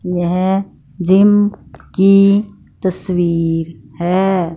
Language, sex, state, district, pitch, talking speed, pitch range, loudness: Hindi, female, Punjab, Fazilka, 185 Hz, 65 wpm, 170-195 Hz, -14 LUFS